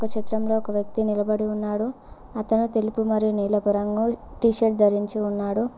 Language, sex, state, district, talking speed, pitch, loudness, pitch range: Telugu, female, Telangana, Mahabubabad, 155 wpm, 215 Hz, -21 LUFS, 210-220 Hz